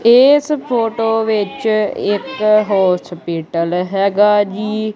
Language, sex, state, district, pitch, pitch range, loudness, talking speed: Punjabi, male, Punjab, Kapurthala, 210 Hz, 195-225 Hz, -15 LUFS, 85 wpm